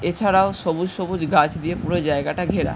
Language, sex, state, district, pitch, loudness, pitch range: Bengali, male, West Bengal, Jhargram, 175 Hz, -21 LUFS, 160-190 Hz